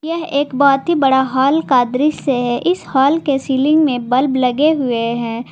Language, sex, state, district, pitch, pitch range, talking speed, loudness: Hindi, female, Jharkhand, Garhwa, 270 Hz, 250-295 Hz, 195 wpm, -15 LUFS